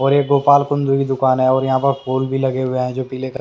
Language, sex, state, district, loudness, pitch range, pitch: Hindi, male, Haryana, Jhajjar, -17 LUFS, 130-140 Hz, 135 Hz